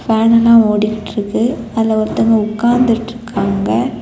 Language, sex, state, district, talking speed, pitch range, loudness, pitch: Tamil, female, Tamil Nadu, Kanyakumari, 75 wpm, 215-230 Hz, -14 LUFS, 225 Hz